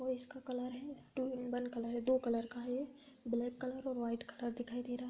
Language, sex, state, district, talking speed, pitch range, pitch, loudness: Hindi, female, Uttar Pradesh, Gorakhpur, 245 wpm, 240-260 Hz, 250 Hz, -41 LUFS